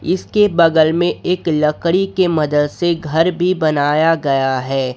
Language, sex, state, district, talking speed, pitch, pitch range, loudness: Hindi, male, Jharkhand, Ranchi, 155 wpm, 160 Hz, 150-175 Hz, -15 LUFS